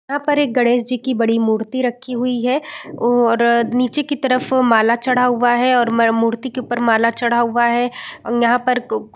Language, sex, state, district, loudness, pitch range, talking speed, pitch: Hindi, female, Bihar, Saran, -17 LUFS, 235-255 Hz, 210 wpm, 245 Hz